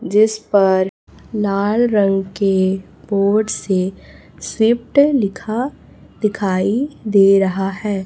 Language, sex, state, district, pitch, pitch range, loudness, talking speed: Hindi, female, Chhattisgarh, Raipur, 200 Hz, 195-220 Hz, -17 LUFS, 95 wpm